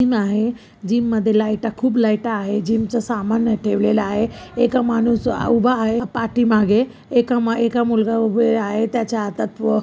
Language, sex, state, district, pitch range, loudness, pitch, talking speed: Marathi, female, Maharashtra, Chandrapur, 215-235 Hz, -19 LUFS, 225 Hz, 165 wpm